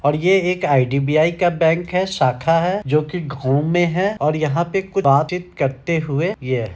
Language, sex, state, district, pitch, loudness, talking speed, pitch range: Hindi, male, Bihar, Samastipur, 160 Hz, -18 LUFS, 205 wpm, 140-180 Hz